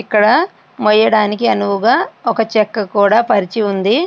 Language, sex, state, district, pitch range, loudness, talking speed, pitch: Telugu, female, Andhra Pradesh, Srikakulam, 205-225 Hz, -14 LUFS, 120 wpm, 215 Hz